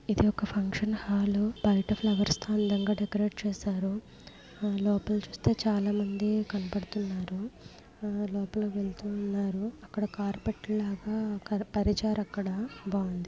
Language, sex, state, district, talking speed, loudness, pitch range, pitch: Telugu, female, Andhra Pradesh, Guntur, 115 wpm, -31 LUFS, 200-215 Hz, 205 Hz